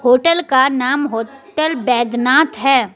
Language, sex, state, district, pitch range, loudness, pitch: Hindi, female, Jharkhand, Deoghar, 250-305 Hz, -15 LUFS, 265 Hz